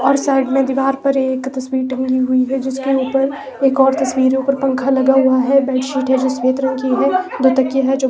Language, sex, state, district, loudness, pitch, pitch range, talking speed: Hindi, female, Himachal Pradesh, Shimla, -16 LUFS, 265 Hz, 260-270 Hz, 245 wpm